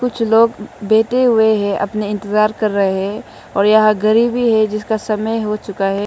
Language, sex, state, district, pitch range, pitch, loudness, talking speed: Hindi, female, Arunachal Pradesh, Lower Dibang Valley, 205-225 Hz, 215 Hz, -15 LUFS, 190 wpm